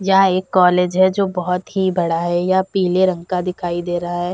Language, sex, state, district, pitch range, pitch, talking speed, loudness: Hindi, female, Uttar Pradesh, Jalaun, 175-190 Hz, 180 Hz, 235 wpm, -17 LUFS